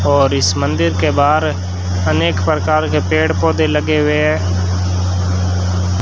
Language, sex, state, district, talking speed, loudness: Hindi, male, Rajasthan, Bikaner, 130 wpm, -15 LUFS